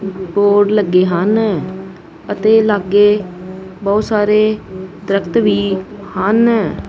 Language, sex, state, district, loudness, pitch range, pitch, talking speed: Punjabi, male, Punjab, Kapurthala, -14 LUFS, 190-210 Hz, 200 Hz, 85 wpm